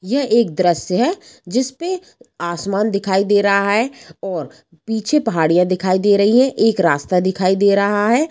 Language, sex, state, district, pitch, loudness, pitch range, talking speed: Hindi, female, Jharkhand, Sahebganj, 200 Hz, -17 LUFS, 185-230 Hz, 165 wpm